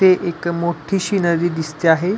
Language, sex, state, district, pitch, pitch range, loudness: Marathi, male, Maharashtra, Pune, 175 Hz, 170-185 Hz, -19 LUFS